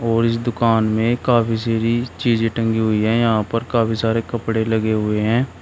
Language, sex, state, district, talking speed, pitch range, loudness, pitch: Hindi, male, Uttar Pradesh, Shamli, 190 wpm, 110-115 Hz, -19 LUFS, 115 Hz